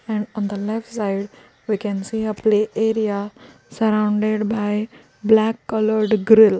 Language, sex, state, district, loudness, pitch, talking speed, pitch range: English, female, Gujarat, Valsad, -20 LUFS, 215 Hz, 145 wpm, 210-220 Hz